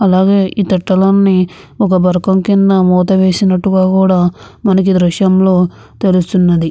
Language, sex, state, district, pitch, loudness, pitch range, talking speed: Telugu, female, Andhra Pradesh, Visakhapatnam, 190 Hz, -11 LUFS, 180-195 Hz, 100 wpm